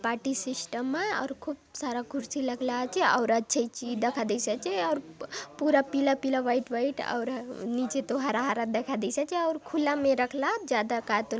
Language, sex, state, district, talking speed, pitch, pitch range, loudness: Halbi, female, Chhattisgarh, Bastar, 205 wpm, 255 Hz, 240-280 Hz, -29 LUFS